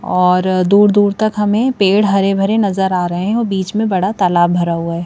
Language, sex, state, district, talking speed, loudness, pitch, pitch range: Hindi, female, Madhya Pradesh, Bhopal, 225 wpm, -14 LUFS, 195 Hz, 180-205 Hz